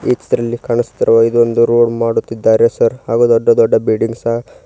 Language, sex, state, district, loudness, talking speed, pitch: Kannada, male, Karnataka, Koppal, -13 LUFS, 155 wpm, 120 Hz